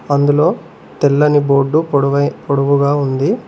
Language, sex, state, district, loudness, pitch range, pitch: Telugu, male, Telangana, Mahabubabad, -14 LUFS, 140-150 Hz, 145 Hz